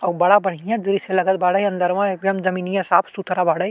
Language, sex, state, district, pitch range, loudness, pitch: Bhojpuri, male, Uttar Pradesh, Deoria, 180-195 Hz, -19 LUFS, 190 Hz